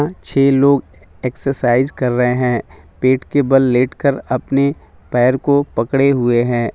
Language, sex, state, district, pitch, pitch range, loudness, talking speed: Hindi, male, Jharkhand, Jamtara, 130 Hz, 125-140 Hz, -16 LUFS, 140 wpm